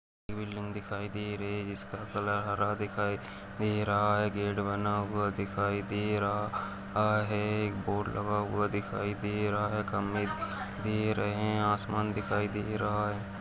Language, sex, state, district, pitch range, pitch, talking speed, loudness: Kumaoni, male, Uttarakhand, Uttarkashi, 100-105 Hz, 105 Hz, 165 wpm, -32 LUFS